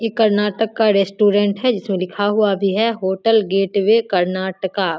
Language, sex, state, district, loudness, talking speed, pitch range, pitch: Hindi, female, Bihar, Samastipur, -17 LUFS, 170 wpm, 190-220 Hz, 205 Hz